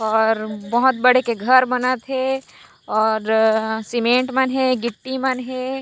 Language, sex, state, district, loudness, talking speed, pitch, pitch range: Chhattisgarhi, female, Chhattisgarh, Raigarh, -19 LUFS, 145 wpm, 250 Hz, 220-260 Hz